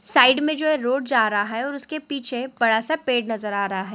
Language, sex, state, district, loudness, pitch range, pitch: Hindi, female, Bihar, Sitamarhi, -21 LUFS, 220-285 Hz, 250 Hz